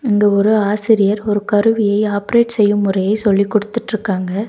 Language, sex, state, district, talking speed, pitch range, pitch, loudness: Tamil, female, Tamil Nadu, Nilgiris, 135 wpm, 200-215 Hz, 210 Hz, -15 LUFS